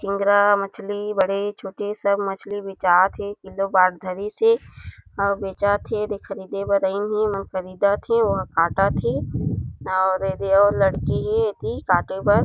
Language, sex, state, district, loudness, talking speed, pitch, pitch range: Chhattisgarhi, female, Chhattisgarh, Jashpur, -22 LUFS, 170 wpm, 200 Hz, 190-205 Hz